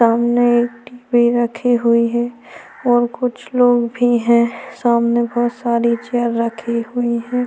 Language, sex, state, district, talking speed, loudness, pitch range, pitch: Hindi, female, Maharashtra, Chandrapur, 145 wpm, -17 LUFS, 235-245 Hz, 240 Hz